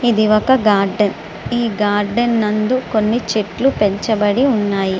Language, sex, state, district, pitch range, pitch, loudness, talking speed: Telugu, female, Andhra Pradesh, Srikakulam, 205-240 Hz, 215 Hz, -16 LUFS, 120 wpm